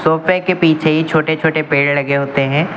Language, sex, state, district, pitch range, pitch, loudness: Hindi, male, Uttar Pradesh, Lucknow, 145-160 Hz, 155 Hz, -14 LUFS